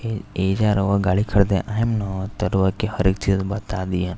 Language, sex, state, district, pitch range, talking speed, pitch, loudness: Bhojpuri, male, Uttar Pradesh, Deoria, 95-105 Hz, 215 wpm, 100 Hz, -21 LUFS